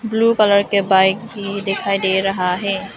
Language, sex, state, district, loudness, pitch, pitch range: Hindi, female, Arunachal Pradesh, Lower Dibang Valley, -17 LUFS, 200 Hz, 195-205 Hz